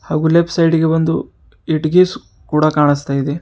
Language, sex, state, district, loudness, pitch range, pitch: Kannada, male, Karnataka, Bidar, -15 LUFS, 145-165 Hz, 155 Hz